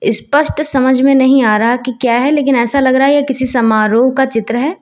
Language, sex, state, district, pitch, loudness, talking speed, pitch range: Hindi, female, Uttar Pradesh, Lucknow, 260 Hz, -12 LUFS, 260 wpm, 240-275 Hz